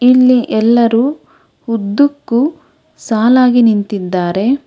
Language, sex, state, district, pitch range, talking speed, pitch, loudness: Kannada, female, Karnataka, Bangalore, 220-255 Hz, 65 wpm, 240 Hz, -12 LUFS